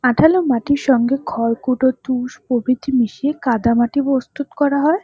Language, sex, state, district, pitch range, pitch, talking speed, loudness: Bengali, female, West Bengal, North 24 Parganas, 245-285 Hz, 260 Hz, 130 wpm, -17 LUFS